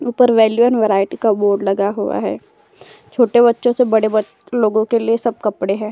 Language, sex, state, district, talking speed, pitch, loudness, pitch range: Hindi, female, Uttar Pradesh, Jyotiba Phule Nagar, 180 wpm, 220 Hz, -16 LUFS, 210-240 Hz